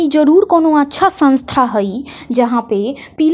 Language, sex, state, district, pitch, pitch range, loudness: Hindi, female, Bihar, West Champaran, 285 Hz, 245-315 Hz, -13 LUFS